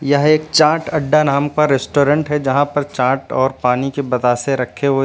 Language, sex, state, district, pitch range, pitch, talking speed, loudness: Hindi, male, Uttar Pradesh, Lucknow, 135-150 Hz, 140 Hz, 200 wpm, -16 LUFS